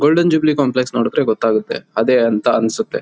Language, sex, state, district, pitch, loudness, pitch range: Kannada, male, Karnataka, Mysore, 125 Hz, -16 LUFS, 115-150 Hz